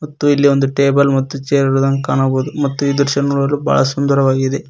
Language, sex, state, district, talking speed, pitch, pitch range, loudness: Kannada, male, Karnataka, Koppal, 155 wpm, 140 Hz, 135-140 Hz, -15 LUFS